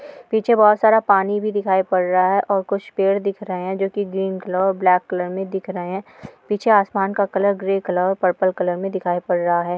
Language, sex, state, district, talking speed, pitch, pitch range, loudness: Hindi, female, Andhra Pradesh, Srikakulam, 240 wpm, 195 Hz, 185-200 Hz, -19 LUFS